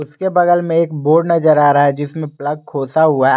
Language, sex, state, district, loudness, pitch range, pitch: Hindi, male, Jharkhand, Garhwa, -14 LUFS, 145-165 Hz, 155 Hz